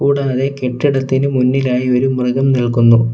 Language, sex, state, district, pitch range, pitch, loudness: Malayalam, male, Kerala, Kollam, 125-135 Hz, 130 Hz, -15 LUFS